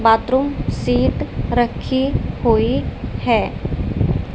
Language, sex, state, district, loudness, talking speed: Hindi, female, Haryana, Charkhi Dadri, -19 LUFS, 70 wpm